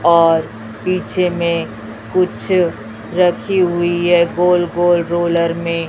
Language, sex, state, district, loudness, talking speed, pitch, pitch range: Hindi, female, Chhattisgarh, Raipur, -16 LUFS, 110 wpm, 170 Hz, 165-180 Hz